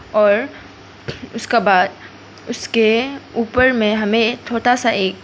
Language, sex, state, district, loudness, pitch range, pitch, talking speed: Hindi, female, Arunachal Pradesh, Papum Pare, -16 LUFS, 215-245 Hz, 230 Hz, 115 wpm